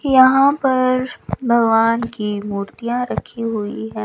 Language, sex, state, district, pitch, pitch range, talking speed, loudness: Hindi, female, Chandigarh, Chandigarh, 235 Hz, 210-255 Hz, 120 wpm, -18 LUFS